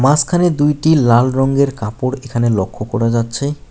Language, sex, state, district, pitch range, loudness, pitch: Bengali, male, West Bengal, Alipurduar, 115-145 Hz, -15 LUFS, 130 Hz